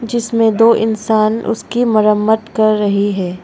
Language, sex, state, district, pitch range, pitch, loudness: Hindi, female, Arunachal Pradesh, Longding, 210-225 Hz, 220 Hz, -14 LUFS